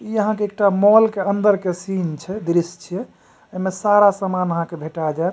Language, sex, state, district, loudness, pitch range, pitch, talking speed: Maithili, male, Bihar, Supaul, -19 LUFS, 175-205 Hz, 190 Hz, 235 wpm